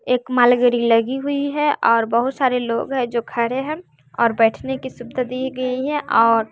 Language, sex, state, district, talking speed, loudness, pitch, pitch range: Hindi, male, Bihar, West Champaran, 195 wpm, -19 LUFS, 250 Hz, 235-265 Hz